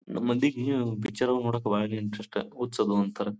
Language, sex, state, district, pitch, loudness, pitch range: Kannada, male, Karnataka, Bijapur, 110 Hz, -29 LUFS, 105-125 Hz